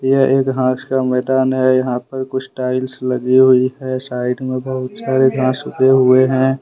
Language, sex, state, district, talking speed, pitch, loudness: Hindi, male, Jharkhand, Deoghar, 200 wpm, 130 Hz, -16 LUFS